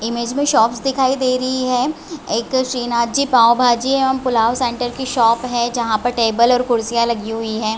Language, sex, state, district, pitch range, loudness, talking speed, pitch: Hindi, female, Chhattisgarh, Raigarh, 230-260 Hz, -17 LUFS, 175 wpm, 245 Hz